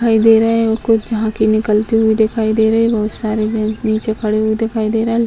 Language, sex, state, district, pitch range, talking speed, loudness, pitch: Hindi, female, Bihar, Muzaffarpur, 215-225 Hz, 260 wpm, -15 LUFS, 220 Hz